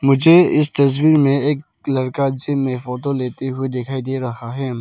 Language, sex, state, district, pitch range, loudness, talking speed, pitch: Hindi, male, Arunachal Pradesh, Lower Dibang Valley, 130-140 Hz, -17 LUFS, 185 wpm, 135 Hz